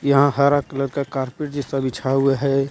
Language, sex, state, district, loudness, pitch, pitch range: Hindi, male, Jharkhand, Deoghar, -20 LUFS, 135 Hz, 135-140 Hz